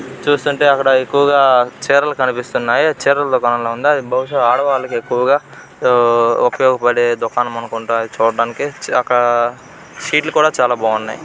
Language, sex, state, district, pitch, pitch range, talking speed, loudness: Telugu, male, Telangana, Karimnagar, 125 Hz, 120-145 Hz, 125 wpm, -15 LUFS